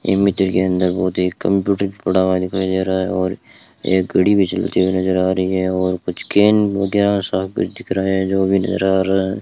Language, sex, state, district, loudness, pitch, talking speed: Hindi, male, Rajasthan, Bikaner, -17 LUFS, 95 Hz, 230 wpm